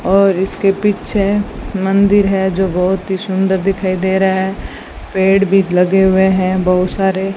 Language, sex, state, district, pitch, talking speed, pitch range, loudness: Hindi, female, Rajasthan, Bikaner, 190 Hz, 165 wpm, 190-195 Hz, -14 LUFS